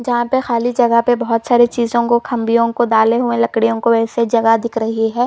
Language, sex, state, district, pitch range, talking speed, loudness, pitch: Hindi, female, Chhattisgarh, Bilaspur, 230-240 Hz, 230 wpm, -15 LUFS, 235 Hz